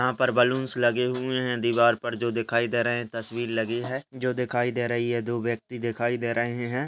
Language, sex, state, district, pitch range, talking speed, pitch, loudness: Hindi, male, Rajasthan, Churu, 120-125 Hz, 235 wpm, 120 Hz, -26 LUFS